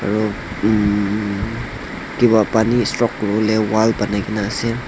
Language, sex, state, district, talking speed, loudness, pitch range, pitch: Nagamese, male, Nagaland, Dimapur, 145 wpm, -18 LUFS, 105-110 Hz, 110 Hz